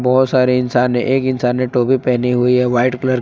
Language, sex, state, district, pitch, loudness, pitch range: Hindi, male, Jharkhand, Palamu, 125 Hz, -15 LUFS, 125-130 Hz